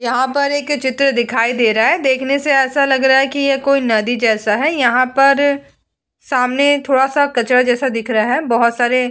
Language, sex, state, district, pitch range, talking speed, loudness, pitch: Hindi, female, Uttar Pradesh, Etah, 240-280 Hz, 215 wpm, -14 LUFS, 265 Hz